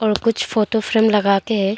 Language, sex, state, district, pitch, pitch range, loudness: Hindi, female, Arunachal Pradesh, Longding, 215 Hz, 205-220 Hz, -17 LUFS